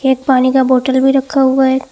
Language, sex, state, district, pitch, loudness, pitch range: Hindi, female, Assam, Hailakandi, 265 Hz, -12 LUFS, 260-265 Hz